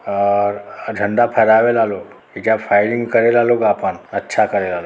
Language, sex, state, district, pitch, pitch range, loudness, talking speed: Bhojpuri, male, Uttar Pradesh, Deoria, 110 Hz, 100-115 Hz, -16 LUFS, 150 wpm